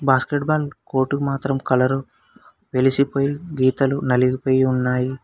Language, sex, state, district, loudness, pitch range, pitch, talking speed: Telugu, male, Telangana, Hyderabad, -20 LUFS, 130-140 Hz, 135 Hz, 105 wpm